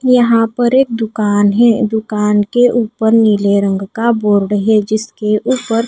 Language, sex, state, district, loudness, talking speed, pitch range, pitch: Hindi, female, Odisha, Nuapada, -13 LUFS, 155 wpm, 210-235 Hz, 220 Hz